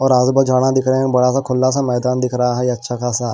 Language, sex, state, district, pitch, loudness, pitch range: Hindi, male, Bihar, Kaimur, 125 Hz, -16 LUFS, 125-130 Hz